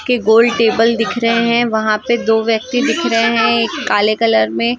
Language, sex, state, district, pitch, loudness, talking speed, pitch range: Hindi, female, Maharashtra, Gondia, 225 Hz, -14 LUFS, 200 wpm, 220-235 Hz